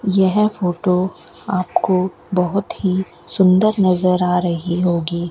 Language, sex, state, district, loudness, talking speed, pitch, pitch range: Hindi, female, Rajasthan, Bikaner, -18 LUFS, 115 wpm, 185 Hz, 175-190 Hz